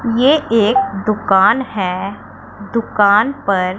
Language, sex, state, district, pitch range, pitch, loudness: Hindi, female, Punjab, Pathankot, 195-235 Hz, 215 Hz, -15 LUFS